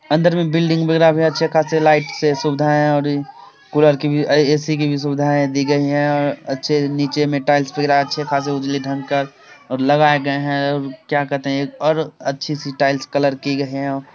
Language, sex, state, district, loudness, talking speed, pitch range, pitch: Hindi, male, Bihar, Samastipur, -17 LUFS, 200 wpm, 140-150 Hz, 145 Hz